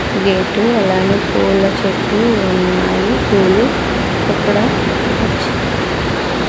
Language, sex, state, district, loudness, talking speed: Telugu, female, Andhra Pradesh, Sri Satya Sai, -14 LUFS, 90 wpm